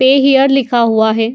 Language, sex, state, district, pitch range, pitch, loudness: Hindi, female, Uttar Pradesh, Muzaffarnagar, 225-270 Hz, 255 Hz, -11 LUFS